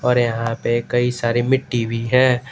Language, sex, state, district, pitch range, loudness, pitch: Hindi, male, Jharkhand, Garhwa, 115-125 Hz, -19 LUFS, 120 Hz